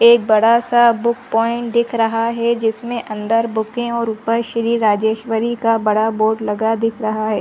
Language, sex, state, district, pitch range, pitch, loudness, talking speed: Hindi, female, Chhattisgarh, Rajnandgaon, 220-235 Hz, 225 Hz, -17 LUFS, 180 wpm